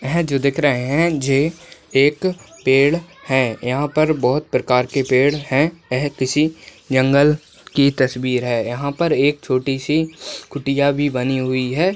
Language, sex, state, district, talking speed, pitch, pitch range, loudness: Hindi, male, Bihar, Bhagalpur, 160 wpm, 140 Hz, 130-150 Hz, -18 LUFS